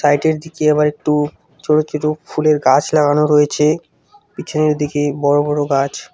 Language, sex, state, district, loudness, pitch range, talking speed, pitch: Bengali, male, West Bengal, Cooch Behar, -16 LUFS, 145-155 Hz, 145 wpm, 150 Hz